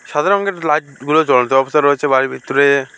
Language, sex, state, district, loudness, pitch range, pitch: Bengali, male, West Bengal, Alipurduar, -15 LUFS, 135-155 Hz, 145 Hz